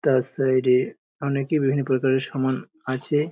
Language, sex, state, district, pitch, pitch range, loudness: Bengali, male, West Bengal, Jalpaiguri, 130 Hz, 130-140 Hz, -23 LUFS